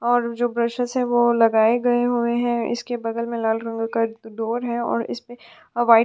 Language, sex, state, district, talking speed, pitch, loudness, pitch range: Hindi, female, Uttar Pradesh, Budaun, 210 wpm, 235 Hz, -22 LUFS, 230-240 Hz